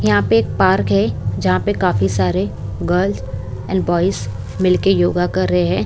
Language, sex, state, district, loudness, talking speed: Hindi, female, Bihar, West Champaran, -17 LUFS, 185 wpm